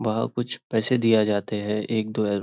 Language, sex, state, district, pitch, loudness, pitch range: Hindi, male, Maharashtra, Nagpur, 110 Hz, -24 LUFS, 105-115 Hz